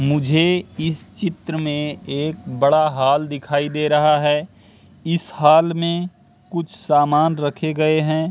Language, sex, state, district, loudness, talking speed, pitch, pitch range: Hindi, male, Madhya Pradesh, Katni, -19 LUFS, 135 wpm, 155 Hz, 145-165 Hz